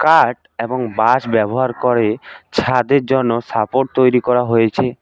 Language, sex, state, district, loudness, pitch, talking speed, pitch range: Bengali, male, West Bengal, Alipurduar, -16 LUFS, 125 Hz, 130 wpm, 115-130 Hz